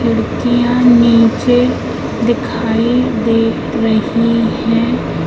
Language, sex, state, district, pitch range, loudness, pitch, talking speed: Hindi, female, Madhya Pradesh, Katni, 230-245 Hz, -13 LUFS, 235 Hz, 70 wpm